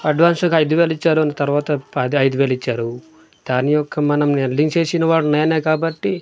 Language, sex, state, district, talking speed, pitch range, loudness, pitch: Telugu, male, Andhra Pradesh, Manyam, 135 wpm, 140-160 Hz, -17 LUFS, 150 Hz